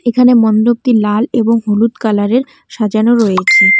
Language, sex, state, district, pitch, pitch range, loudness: Bengali, female, West Bengal, Cooch Behar, 230 Hz, 215-240 Hz, -11 LUFS